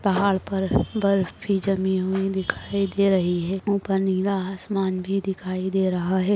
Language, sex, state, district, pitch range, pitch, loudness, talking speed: Hindi, female, Maharashtra, Solapur, 190-195 Hz, 190 Hz, -24 LUFS, 170 wpm